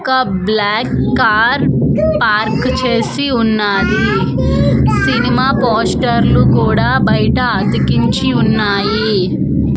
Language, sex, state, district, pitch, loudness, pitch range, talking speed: Telugu, female, Andhra Pradesh, Manyam, 215 Hz, -13 LUFS, 205-245 Hz, 80 wpm